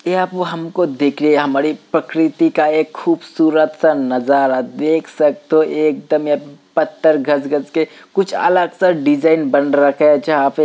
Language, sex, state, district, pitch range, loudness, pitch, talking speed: Hindi, male, Uttar Pradesh, Hamirpur, 145-160 Hz, -15 LUFS, 155 Hz, 175 wpm